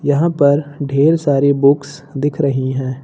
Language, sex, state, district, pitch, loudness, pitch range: Hindi, male, Uttar Pradesh, Lucknow, 140 Hz, -15 LUFS, 140-145 Hz